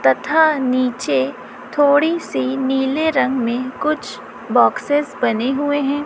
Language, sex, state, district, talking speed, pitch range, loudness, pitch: Hindi, female, Chhattisgarh, Raipur, 120 wpm, 250-290 Hz, -18 LUFS, 270 Hz